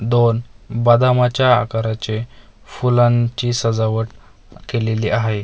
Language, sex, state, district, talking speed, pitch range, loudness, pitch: Marathi, male, Maharashtra, Mumbai Suburban, 90 wpm, 110-120 Hz, -17 LUFS, 115 Hz